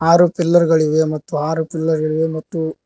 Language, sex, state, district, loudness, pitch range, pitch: Kannada, male, Karnataka, Koppal, -17 LUFS, 155-165 Hz, 160 Hz